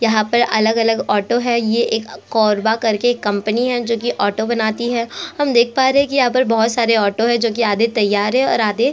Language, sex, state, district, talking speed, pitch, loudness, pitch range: Hindi, female, Chhattisgarh, Korba, 235 wpm, 230 Hz, -16 LUFS, 220-240 Hz